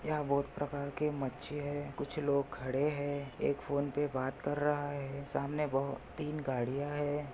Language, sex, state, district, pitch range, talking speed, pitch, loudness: Hindi, male, Maharashtra, Pune, 140-145 Hz, 180 wpm, 145 Hz, -36 LUFS